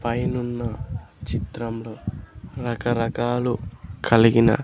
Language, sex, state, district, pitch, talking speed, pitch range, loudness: Telugu, male, Andhra Pradesh, Sri Satya Sai, 115 Hz, 65 wpm, 115-120 Hz, -24 LUFS